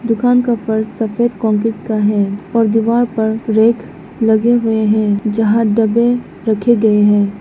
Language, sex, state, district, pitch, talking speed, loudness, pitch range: Hindi, female, Arunachal Pradesh, Lower Dibang Valley, 220 Hz, 155 wpm, -14 LUFS, 215-235 Hz